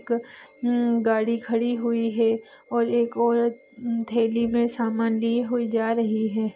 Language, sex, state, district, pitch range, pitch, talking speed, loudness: Hindi, female, Chhattisgarh, Sarguja, 230-235 Hz, 230 Hz, 135 wpm, -24 LUFS